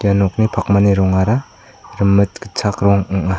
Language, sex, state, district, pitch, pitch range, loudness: Garo, male, Meghalaya, South Garo Hills, 100 Hz, 95-110 Hz, -16 LUFS